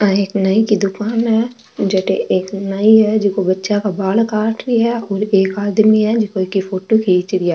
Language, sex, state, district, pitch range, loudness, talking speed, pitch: Marwari, female, Rajasthan, Nagaur, 195-220 Hz, -15 LUFS, 205 wpm, 205 Hz